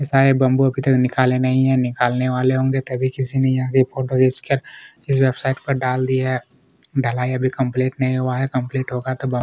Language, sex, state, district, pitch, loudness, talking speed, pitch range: Hindi, male, Chhattisgarh, Kabirdham, 130 Hz, -19 LUFS, 205 wpm, 130-135 Hz